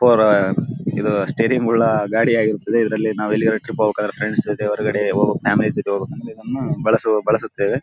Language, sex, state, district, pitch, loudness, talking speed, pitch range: Kannada, male, Karnataka, Bellary, 110 Hz, -19 LUFS, 170 wpm, 105-115 Hz